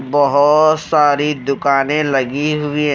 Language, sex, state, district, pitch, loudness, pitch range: Hindi, male, Haryana, Rohtak, 145 Hz, -15 LUFS, 140-150 Hz